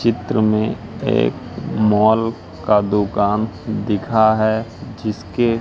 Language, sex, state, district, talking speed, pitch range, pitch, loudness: Hindi, male, Madhya Pradesh, Katni, 95 wpm, 105-110 Hz, 110 Hz, -18 LUFS